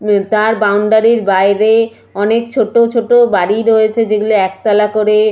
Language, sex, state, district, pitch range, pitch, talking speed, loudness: Bengali, female, West Bengal, Purulia, 210-230 Hz, 215 Hz, 145 wpm, -12 LUFS